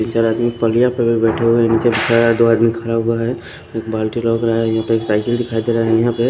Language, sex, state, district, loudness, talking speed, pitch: Hindi, male, Maharashtra, Washim, -16 LUFS, 240 wpm, 115 Hz